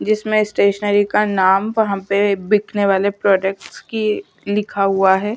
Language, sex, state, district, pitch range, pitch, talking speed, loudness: Hindi, female, Chhattisgarh, Sukma, 195-210 Hz, 205 Hz, 145 wpm, -17 LUFS